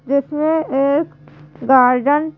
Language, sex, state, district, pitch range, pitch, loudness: Hindi, female, Madhya Pradesh, Bhopal, 260-300 Hz, 280 Hz, -16 LUFS